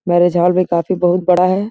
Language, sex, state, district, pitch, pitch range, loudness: Hindi, female, Uttar Pradesh, Gorakhpur, 180 Hz, 175-185 Hz, -14 LUFS